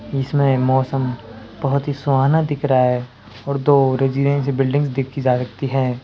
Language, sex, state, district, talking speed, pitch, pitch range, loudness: Hindi, male, Rajasthan, Jaipur, 160 wpm, 135 Hz, 125-140 Hz, -18 LUFS